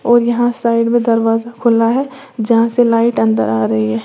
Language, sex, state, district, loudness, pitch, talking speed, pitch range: Hindi, female, Uttar Pradesh, Lalitpur, -14 LUFS, 230 Hz, 205 wpm, 225-240 Hz